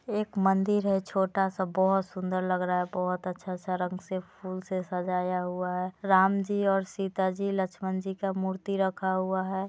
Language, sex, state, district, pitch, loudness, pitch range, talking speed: Hindi, female, Bihar, Muzaffarpur, 190 Hz, -29 LUFS, 185-195 Hz, 200 wpm